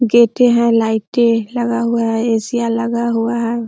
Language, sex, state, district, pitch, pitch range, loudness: Hindi, female, Bihar, Araria, 235 Hz, 230-235 Hz, -15 LUFS